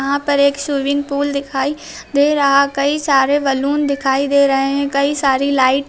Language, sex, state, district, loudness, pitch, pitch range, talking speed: Hindi, female, Bihar, Purnia, -16 LUFS, 280 Hz, 275-285 Hz, 195 wpm